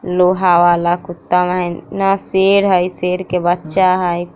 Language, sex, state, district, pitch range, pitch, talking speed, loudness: Bajjika, female, Bihar, Vaishali, 175-185 Hz, 180 Hz, 165 wpm, -15 LUFS